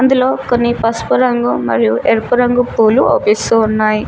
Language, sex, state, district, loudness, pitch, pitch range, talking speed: Telugu, female, Telangana, Mahabubabad, -13 LUFS, 240 Hz, 220-245 Hz, 145 wpm